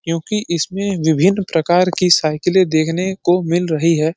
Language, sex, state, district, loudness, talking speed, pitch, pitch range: Hindi, male, Uttar Pradesh, Deoria, -16 LUFS, 160 wpm, 175 Hz, 160-185 Hz